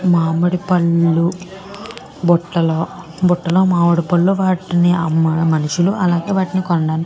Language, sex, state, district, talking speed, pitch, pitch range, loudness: Telugu, female, Andhra Pradesh, Krishna, 85 wpm, 175 Hz, 165-185 Hz, -16 LUFS